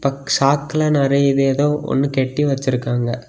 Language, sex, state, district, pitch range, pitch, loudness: Tamil, male, Tamil Nadu, Kanyakumari, 135-145 Hz, 140 Hz, -18 LUFS